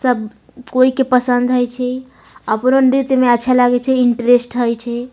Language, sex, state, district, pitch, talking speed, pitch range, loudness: Maithili, female, Bihar, Samastipur, 250 Hz, 140 wpm, 245-255 Hz, -15 LUFS